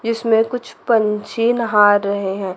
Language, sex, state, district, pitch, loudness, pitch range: Hindi, female, Chandigarh, Chandigarh, 220 Hz, -17 LUFS, 205-230 Hz